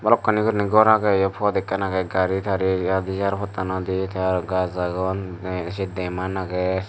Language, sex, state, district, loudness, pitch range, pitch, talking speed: Chakma, male, Tripura, Dhalai, -22 LUFS, 95-100 Hz, 95 Hz, 175 wpm